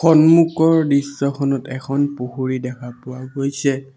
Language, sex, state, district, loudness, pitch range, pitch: Assamese, male, Assam, Sonitpur, -18 LUFS, 130-145 Hz, 140 Hz